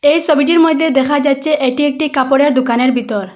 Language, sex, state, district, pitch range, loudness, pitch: Bengali, female, Assam, Hailakandi, 260-300 Hz, -13 LUFS, 285 Hz